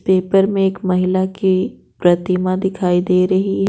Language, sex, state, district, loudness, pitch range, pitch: Hindi, female, Bihar, Patna, -17 LUFS, 185-190 Hz, 185 Hz